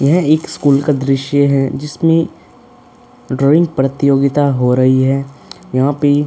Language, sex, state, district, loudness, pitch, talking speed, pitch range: Hindi, male, Uttar Pradesh, Budaun, -14 LUFS, 140 Hz, 145 wpm, 135-150 Hz